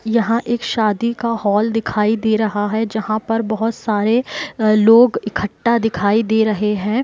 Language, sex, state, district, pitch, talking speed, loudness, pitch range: Hindi, female, Bihar, Muzaffarpur, 220 Hz, 160 wpm, -17 LUFS, 215-230 Hz